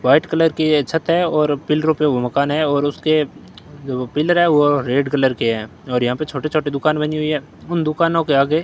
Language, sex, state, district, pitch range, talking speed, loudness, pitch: Hindi, male, Rajasthan, Bikaner, 140-155 Hz, 245 wpm, -18 LUFS, 150 Hz